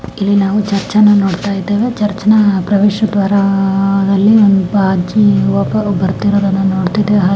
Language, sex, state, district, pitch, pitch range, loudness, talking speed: Kannada, female, Karnataka, Bellary, 200 Hz, 195-205 Hz, -12 LUFS, 105 wpm